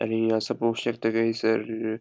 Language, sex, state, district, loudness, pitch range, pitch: Konkani, male, Goa, North and South Goa, -26 LUFS, 110-115 Hz, 115 Hz